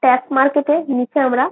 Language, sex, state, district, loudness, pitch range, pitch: Bengali, female, West Bengal, Jalpaiguri, -16 LUFS, 255-290 Hz, 270 Hz